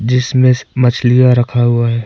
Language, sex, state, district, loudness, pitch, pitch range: Hindi, male, Arunachal Pradesh, Papum Pare, -12 LUFS, 125 Hz, 120-125 Hz